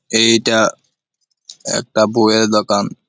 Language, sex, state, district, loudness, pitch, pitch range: Bengali, male, West Bengal, Malda, -14 LUFS, 110 Hz, 110-115 Hz